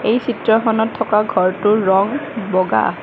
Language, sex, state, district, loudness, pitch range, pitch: Assamese, female, Assam, Kamrup Metropolitan, -16 LUFS, 200-225 Hz, 220 Hz